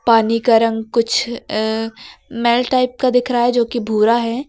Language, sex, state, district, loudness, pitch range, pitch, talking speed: Hindi, female, Uttar Pradesh, Lucknow, -16 LUFS, 225-245 Hz, 235 Hz, 185 wpm